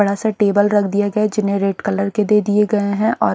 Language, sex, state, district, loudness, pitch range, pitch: Hindi, female, Haryana, Charkhi Dadri, -17 LUFS, 200-210 Hz, 205 Hz